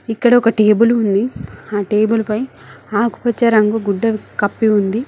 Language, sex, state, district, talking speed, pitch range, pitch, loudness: Telugu, female, Telangana, Mahabubabad, 140 wpm, 210-235 Hz, 220 Hz, -15 LUFS